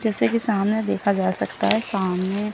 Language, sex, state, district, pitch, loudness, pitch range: Hindi, female, Chandigarh, Chandigarh, 205 Hz, -22 LUFS, 190-220 Hz